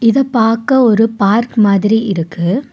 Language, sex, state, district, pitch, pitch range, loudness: Tamil, female, Tamil Nadu, Nilgiris, 225 Hz, 200-240 Hz, -12 LUFS